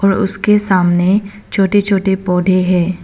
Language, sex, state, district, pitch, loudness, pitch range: Hindi, female, Arunachal Pradesh, Papum Pare, 195 Hz, -13 LUFS, 185-200 Hz